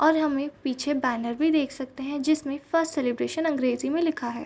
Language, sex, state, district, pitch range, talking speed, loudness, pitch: Hindi, female, Bihar, East Champaran, 265-310 Hz, 215 wpm, -26 LUFS, 285 Hz